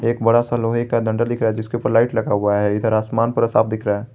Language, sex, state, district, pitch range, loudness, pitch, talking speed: Hindi, male, Jharkhand, Garhwa, 110-120 Hz, -19 LUFS, 115 Hz, 305 wpm